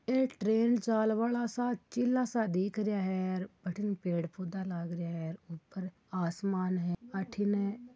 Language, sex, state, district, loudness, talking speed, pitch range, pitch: Marwari, female, Rajasthan, Churu, -33 LUFS, 165 wpm, 180-225 Hz, 195 Hz